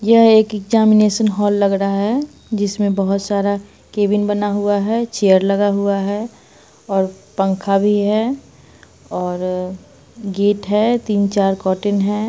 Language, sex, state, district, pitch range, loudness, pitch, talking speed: Hindi, female, Bihar, Muzaffarpur, 195-215 Hz, -17 LUFS, 205 Hz, 140 wpm